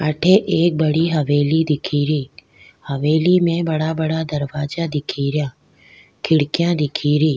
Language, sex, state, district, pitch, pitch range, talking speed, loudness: Rajasthani, female, Rajasthan, Nagaur, 155 Hz, 145-165 Hz, 115 wpm, -18 LUFS